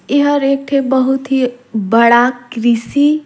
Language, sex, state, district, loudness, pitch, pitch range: Surgujia, female, Chhattisgarh, Sarguja, -13 LUFS, 260 Hz, 235-275 Hz